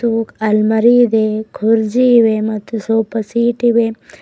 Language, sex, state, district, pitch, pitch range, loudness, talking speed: Kannada, female, Karnataka, Bidar, 225 Hz, 220-235 Hz, -14 LUFS, 115 wpm